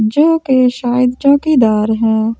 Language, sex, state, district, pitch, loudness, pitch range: Hindi, female, Delhi, New Delhi, 250 Hz, -12 LUFS, 220-280 Hz